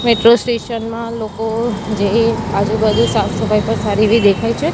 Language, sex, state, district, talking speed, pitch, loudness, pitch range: Gujarati, female, Gujarat, Gandhinagar, 165 wpm, 225 Hz, -15 LUFS, 210-230 Hz